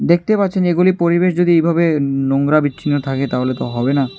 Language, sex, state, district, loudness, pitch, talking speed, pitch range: Bengali, male, Tripura, West Tripura, -16 LUFS, 155 Hz, 185 wpm, 135-175 Hz